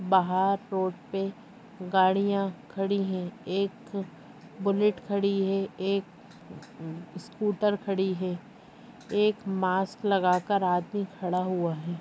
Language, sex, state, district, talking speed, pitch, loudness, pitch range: Hindi, male, West Bengal, Purulia, 115 wpm, 195 Hz, -28 LUFS, 185-205 Hz